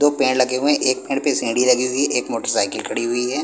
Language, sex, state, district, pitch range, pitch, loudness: Hindi, male, Punjab, Pathankot, 125-140 Hz, 130 Hz, -19 LUFS